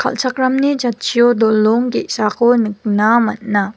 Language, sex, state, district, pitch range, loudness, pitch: Garo, female, Meghalaya, West Garo Hills, 215-250 Hz, -15 LUFS, 235 Hz